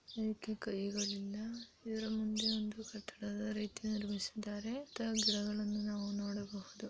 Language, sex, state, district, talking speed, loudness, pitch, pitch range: Kannada, female, Karnataka, Dharwad, 95 wpm, -40 LUFS, 215 Hz, 205-220 Hz